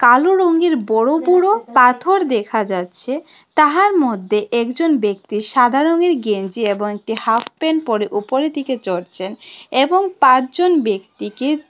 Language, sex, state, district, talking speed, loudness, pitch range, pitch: Bengali, female, Tripura, West Tripura, 130 wpm, -16 LUFS, 210-320 Hz, 255 Hz